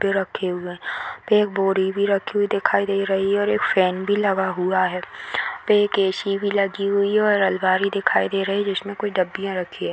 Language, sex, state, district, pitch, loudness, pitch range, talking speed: Hindi, female, Bihar, Bhagalpur, 195 Hz, -21 LUFS, 190-200 Hz, 265 wpm